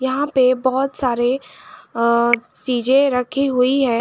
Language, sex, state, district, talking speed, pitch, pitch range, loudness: Hindi, female, Jharkhand, Garhwa, 135 wpm, 255 Hz, 245-270 Hz, -18 LUFS